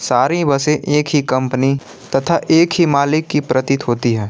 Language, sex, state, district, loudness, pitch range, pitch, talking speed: Hindi, male, Jharkhand, Palamu, -16 LUFS, 130-155 Hz, 140 Hz, 180 wpm